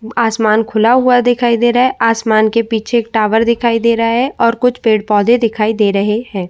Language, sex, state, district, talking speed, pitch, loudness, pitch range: Hindi, female, Uttar Pradesh, Muzaffarnagar, 210 wpm, 230 Hz, -13 LUFS, 215-240 Hz